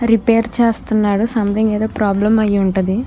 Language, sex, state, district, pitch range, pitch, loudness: Telugu, female, Andhra Pradesh, Krishna, 205-230 Hz, 215 Hz, -15 LUFS